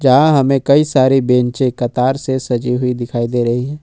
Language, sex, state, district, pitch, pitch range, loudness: Hindi, male, Jharkhand, Ranchi, 130 Hz, 125-135 Hz, -14 LUFS